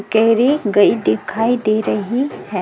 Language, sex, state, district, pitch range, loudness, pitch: Hindi, female, Chhattisgarh, Kabirdham, 200-240 Hz, -16 LUFS, 220 Hz